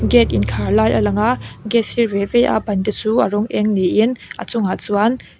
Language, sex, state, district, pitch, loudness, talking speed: Mizo, female, Mizoram, Aizawl, 210 Hz, -17 LUFS, 235 wpm